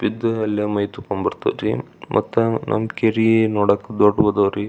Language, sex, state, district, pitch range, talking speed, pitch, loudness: Kannada, male, Karnataka, Belgaum, 105-110 Hz, 115 wpm, 105 Hz, -20 LUFS